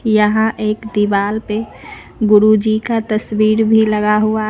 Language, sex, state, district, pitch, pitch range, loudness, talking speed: Hindi, female, Uttar Pradesh, Lucknow, 215 Hz, 210-220 Hz, -15 LUFS, 145 wpm